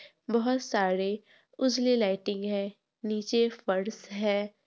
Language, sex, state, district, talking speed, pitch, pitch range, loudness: Hindi, female, Bihar, Purnia, 115 wpm, 210 Hz, 200-235 Hz, -29 LUFS